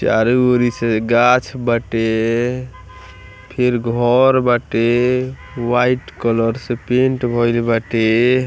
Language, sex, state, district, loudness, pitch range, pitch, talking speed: Bhojpuri, male, Bihar, East Champaran, -16 LUFS, 115-125 Hz, 120 Hz, 100 wpm